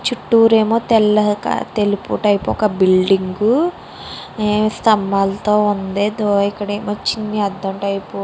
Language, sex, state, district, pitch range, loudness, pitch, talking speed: Telugu, female, Andhra Pradesh, Srikakulam, 200-215 Hz, -16 LUFS, 205 Hz, 115 wpm